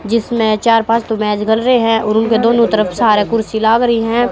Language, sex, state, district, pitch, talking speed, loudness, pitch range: Hindi, female, Haryana, Jhajjar, 225 Hz, 210 wpm, -13 LUFS, 220-235 Hz